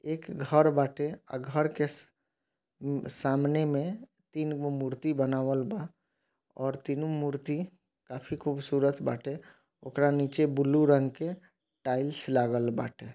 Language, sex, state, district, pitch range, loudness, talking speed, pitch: Bhojpuri, male, Bihar, East Champaran, 135-155 Hz, -30 LUFS, 120 wpm, 145 Hz